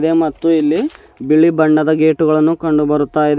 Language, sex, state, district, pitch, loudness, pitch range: Kannada, male, Karnataka, Bidar, 155 Hz, -14 LUFS, 155-165 Hz